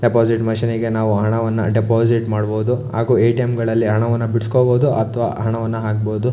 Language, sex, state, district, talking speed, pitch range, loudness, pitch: Kannada, male, Karnataka, Shimoga, 135 wpm, 110-115 Hz, -18 LUFS, 115 Hz